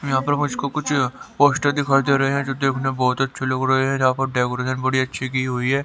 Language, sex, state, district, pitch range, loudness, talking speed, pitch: Hindi, male, Haryana, Rohtak, 130-140 Hz, -20 LUFS, 245 wpm, 135 Hz